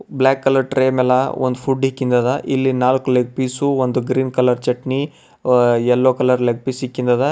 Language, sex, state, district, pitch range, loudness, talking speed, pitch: Kannada, male, Karnataka, Bidar, 125-130 Hz, -17 LUFS, 180 wpm, 130 Hz